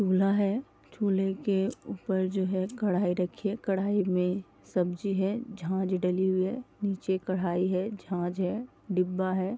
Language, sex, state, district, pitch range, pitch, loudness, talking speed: Hindi, female, Uttar Pradesh, Deoria, 185-200 Hz, 190 Hz, -30 LUFS, 155 wpm